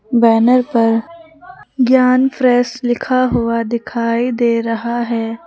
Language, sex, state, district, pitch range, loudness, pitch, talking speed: Hindi, female, Uttar Pradesh, Lucknow, 230-255 Hz, -15 LUFS, 240 Hz, 110 wpm